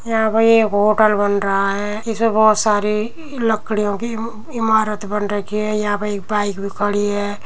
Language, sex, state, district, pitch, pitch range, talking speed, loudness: Hindi, female, Uttar Pradesh, Muzaffarnagar, 210 Hz, 205-220 Hz, 195 wpm, -18 LUFS